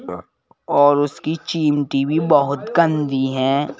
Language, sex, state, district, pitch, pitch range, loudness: Hindi, male, Madhya Pradesh, Bhopal, 145 Hz, 135-155 Hz, -18 LUFS